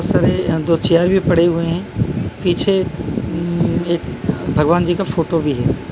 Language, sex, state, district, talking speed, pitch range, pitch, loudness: Hindi, male, Odisha, Malkangiri, 170 wpm, 165-175 Hz, 170 Hz, -17 LUFS